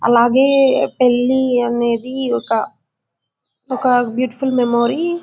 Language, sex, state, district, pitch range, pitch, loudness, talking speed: Telugu, female, Telangana, Karimnagar, 240-265 Hz, 250 Hz, -16 LUFS, 90 wpm